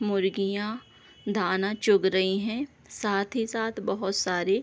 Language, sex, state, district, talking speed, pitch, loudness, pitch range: Hindi, female, Bihar, East Champaran, 145 wpm, 200 Hz, -27 LUFS, 195-220 Hz